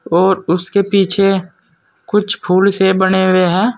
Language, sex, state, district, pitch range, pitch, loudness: Hindi, male, Uttar Pradesh, Saharanpur, 185-200 Hz, 190 Hz, -13 LUFS